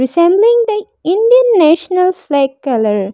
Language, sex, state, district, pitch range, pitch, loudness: English, female, Arunachal Pradesh, Lower Dibang Valley, 275-425 Hz, 360 Hz, -12 LUFS